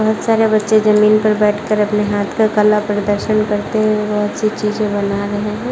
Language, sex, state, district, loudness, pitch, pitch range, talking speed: Hindi, female, Bihar, Kishanganj, -15 LUFS, 210 Hz, 210-215 Hz, 200 wpm